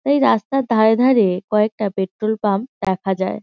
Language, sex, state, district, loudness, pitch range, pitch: Bengali, female, West Bengal, Kolkata, -18 LUFS, 190-230 Hz, 215 Hz